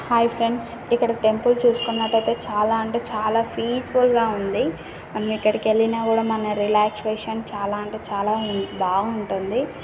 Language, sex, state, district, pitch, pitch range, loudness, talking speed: Telugu, female, Telangana, Karimnagar, 220 Hz, 210-230 Hz, -22 LUFS, 145 wpm